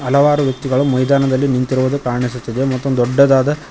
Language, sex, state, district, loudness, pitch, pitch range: Kannada, male, Karnataka, Koppal, -15 LUFS, 135 Hz, 130-140 Hz